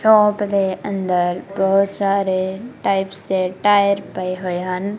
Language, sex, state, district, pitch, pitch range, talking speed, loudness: Punjabi, female, Punjab, Kapurthala, 195 Hz, 185-200 Hz, 130 wpm, -19 LUFS